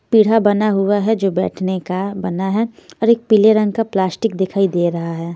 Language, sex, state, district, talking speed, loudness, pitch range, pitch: Hindi, female, Haryana, Jhajjar, 210 wpm, -17 LUFS, 185-220 Hz, 200 Hz